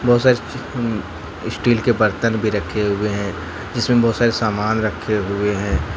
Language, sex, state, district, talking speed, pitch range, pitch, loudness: Hindi, male, Jharkhand, Ranchi, 160 wpm, 100-115 Hz, 105 Hz, -19 LUFS